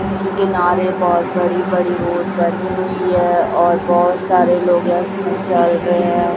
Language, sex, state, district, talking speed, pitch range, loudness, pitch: Hindi, female, Chhattisgarh, Raipur, 160 wpm, 175-185 Hz, -16 LUFS, 180 Hz